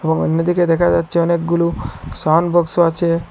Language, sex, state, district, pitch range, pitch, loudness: Bengali, male, Assam, Hailakandi, 165-175 Hz, 170 Hz, -16 LUFS